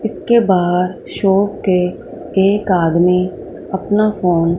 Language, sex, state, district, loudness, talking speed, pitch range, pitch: Hindi, female, Punjab, Fazilka, -15 LUFS, 120 wpm, 180-205 Hz, 185 Hz